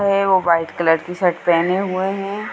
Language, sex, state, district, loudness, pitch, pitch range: Hindi, female, Uttar Pradesh, Hamirpur, -18 LUFS, 185 Hz, 170-195 Hz